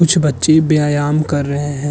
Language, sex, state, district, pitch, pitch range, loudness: Hindi, male, Uttar Pradesh, Hamirpur, 145 Hz, 145-155 Hz, -14 LUFS